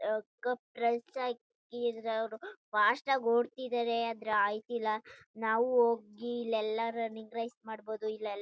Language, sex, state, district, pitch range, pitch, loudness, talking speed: Kannada, female, Karnataka, Chamarajanagar, 220-240 Hz, 230 Hz, -33 LUFS, 85 wpm